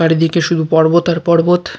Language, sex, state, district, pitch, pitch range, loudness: Bengali, male, West Bengal, Jalpaiguri, 170 Hz, 160-170 Hz, -13 LUFS